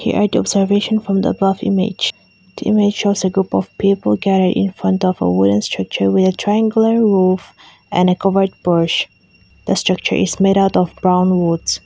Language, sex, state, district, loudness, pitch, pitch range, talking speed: English, female, Mizoram, Aizawl, -16 LUFS, 190 Hz, 180-200 Hz, 185 wpm